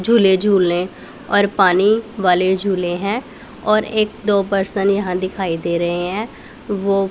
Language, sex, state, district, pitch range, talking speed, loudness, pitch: Hindi, female, Punjab, Pathankot, 185-210 Hz, 145 wpm, -17 LUFS, 195 Hz